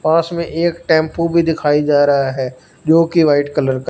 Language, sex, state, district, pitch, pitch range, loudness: Hindi, male, Punjab, Fazilka, 155 Hz, 145-165 Hz, -15 LUFS